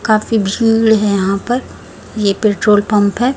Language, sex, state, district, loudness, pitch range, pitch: Hindi, female, Chhattisgarh, Raipur, -14 LUFS, 200-225 Hz, 215 Hz